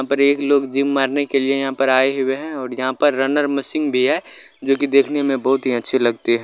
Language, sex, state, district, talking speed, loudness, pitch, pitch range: Hindi, male, Uttar Pradesh, Gorakhpur, 270 wpm, -18 LUFS, 135 Hz, 130-140 Hz